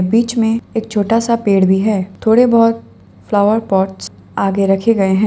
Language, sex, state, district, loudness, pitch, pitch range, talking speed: Hindi, female, Assam, Sonitpur, -14 LUFS, 215 Hz, 195-230 Hz, 180 wpm